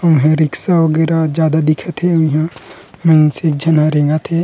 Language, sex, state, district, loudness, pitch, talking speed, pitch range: Chhattisgarhi, male, Chhattisgarh, Rajnandgaon, -13 LUFS, 160 Hz, 175 wpm, 155-165 Hz